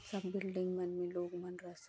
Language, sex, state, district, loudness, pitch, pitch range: Chhattisgarhi, female, Chhattisgarh, Bastar, -41 LUFS, 180 Hz, 175-185 Hz